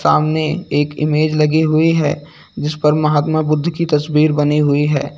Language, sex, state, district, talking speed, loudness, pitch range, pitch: Hindi, male, Uttar Pradesh, Lucknow, 175 wpm, -15 LUFS, 150-155 Hz, 150 Hz